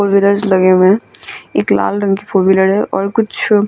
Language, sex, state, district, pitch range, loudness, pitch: Hindi, female, Bihar, Vaishali, 190-205 Hz, -13 LUFS, 200 Hz